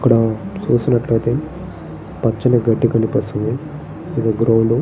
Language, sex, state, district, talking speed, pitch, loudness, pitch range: Telugu, male, Andhra Pradesh, Srikakulam, 100 wpm, 115 Hz, -17 LUFS, 115-140 Hz